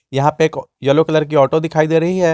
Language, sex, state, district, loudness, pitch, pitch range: Hindi, male, Jharkhand, Garhwa, -15 LUFS, 155 Hz, 150-165 Hz